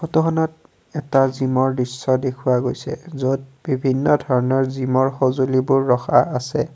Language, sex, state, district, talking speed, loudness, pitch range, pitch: Assamese, male, Assam, Kamrup Metropolitan, 115 wpm, -19 LUFS, 130-145 Hz, 130 Hz